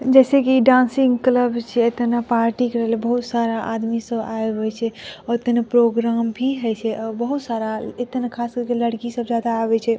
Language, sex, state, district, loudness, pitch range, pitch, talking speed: Maithili, female, Bihar, Madhepura, -20 LUFS, 230-245 Hz, 235 Hz, 210 wpm